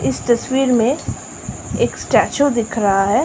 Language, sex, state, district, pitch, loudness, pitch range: Hindi, female, Maharashtra, Chandrapur, 235 Hz, -17 LUFS, 200-260 Hz